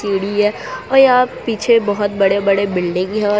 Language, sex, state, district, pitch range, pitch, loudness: Hindi, female, Gujarat, Valsad, 200-225 Hz, 205 Hz, -15 LUFS